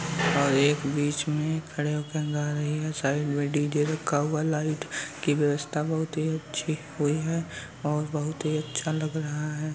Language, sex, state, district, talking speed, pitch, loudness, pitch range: Hindi, male, Uttar Pradesh, Varanasi, 185 wpm, 150 Hz, -28 LUFS, 145-155 Hz